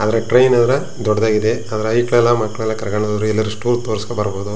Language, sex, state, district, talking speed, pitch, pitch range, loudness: Kannada, male, Karnataka, Chamarajanagar, 185 wpm, 110 Hz, 105-120 Hz, -17 LUFS